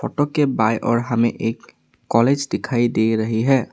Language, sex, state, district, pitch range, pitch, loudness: Hindi, male, Assam, Sonitpur, 115-135 Hz, 115 Hz, -19 LUFS